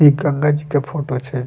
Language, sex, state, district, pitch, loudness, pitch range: Bajjika, male, Bihar, Vaishali, 145 Hz, -18 LUFS, 140-150 Hz